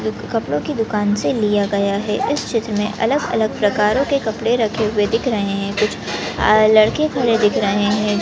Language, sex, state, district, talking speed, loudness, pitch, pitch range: Hindi, female, Maharashtra, Sindhudurg, 195 wpm, -18 LUFS, 210 Hz, 205-225 Hz